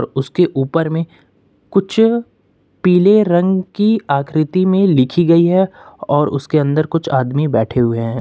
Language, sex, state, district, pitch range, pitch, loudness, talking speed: Hindi, male, Uttar Pradesh, Lucknow, 140-185 Hz, 165 Hz, -15 LUFS, 145 wpm